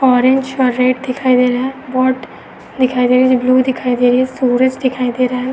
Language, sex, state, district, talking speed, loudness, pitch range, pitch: Hindi, female, Uttar Pradesh, Etah, 240 wpm, -14 LUFS, 250-260 Hz, 255 Hz